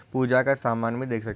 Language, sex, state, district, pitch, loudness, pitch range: Hindi, male, Maharashtra, Solapur, 125 Hz, -24 LUFS, 115-130 Hz